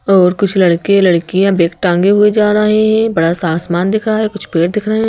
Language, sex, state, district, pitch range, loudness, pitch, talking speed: Hindi, female, Madhya Pradesh, Bhopal, 175-210 Hz, -12 LUFS, 195 Hz, 250 wpm